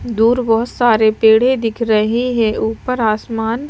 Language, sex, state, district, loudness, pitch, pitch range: Hindi, female, Bihar, Kaimur, -15 LUFS, 225 Hz, 220-240 Hz